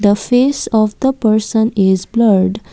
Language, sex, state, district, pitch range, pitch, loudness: English, female, Assam, Kamrup Metropolitan, 205-235 Hz, 215 Hz, -14 LUFS